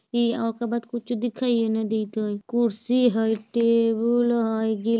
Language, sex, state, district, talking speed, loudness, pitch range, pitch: Bajjika, female, Bihar, Vaishali, 155 wpm, -24 LUFS, 220-240 Hz, 230 Hz